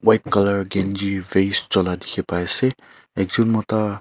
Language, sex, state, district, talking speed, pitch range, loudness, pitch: Nagamese, male, Nagaland, Kohima, 135 wpm, 95-110 Hz, -20 LUFS, 100 Hz